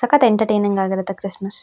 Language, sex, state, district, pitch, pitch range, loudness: Kannada, female, Karnataka, Shimoga, 200 Hz, 195-220 Hz, -18 LUFS